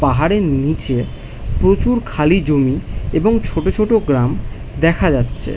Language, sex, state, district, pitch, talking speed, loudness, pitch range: Bengali, male, West Bengal, Malda, 135 Hz, 120 wpm, -16 LUFS, 120-160 Hz